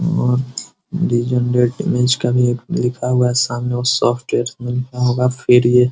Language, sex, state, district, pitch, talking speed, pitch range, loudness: Hindi, male, Bihar, Muzaffarpur, 125 Hz, 150 wpm, 120-125 Hz, -17 LUFS